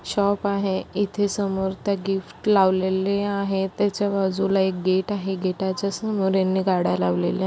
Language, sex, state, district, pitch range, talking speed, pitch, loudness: Marathi, female, Maharashtra, Aurangabad, 190-200 Hz, 150 wpm, 195 Hz, -23 LUFS